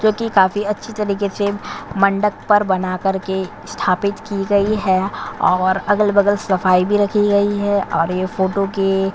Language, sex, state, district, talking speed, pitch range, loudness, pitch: Hindi, female, Chhattisgarh, Korba, 165 wpm, 190-205 Hz, -18 LUFS, 200 Hz